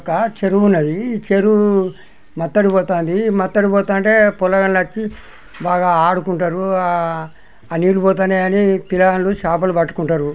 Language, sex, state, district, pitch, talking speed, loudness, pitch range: Telugu, male, Telangana, Nalgonda, 185 Hz, 125 wpm, -16 LUFS, 175-200 Hz